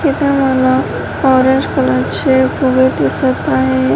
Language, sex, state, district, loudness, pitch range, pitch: Marathi, female, Maharashtra, Washim, -13 LUFS, 255-270 Hz, 260 Hz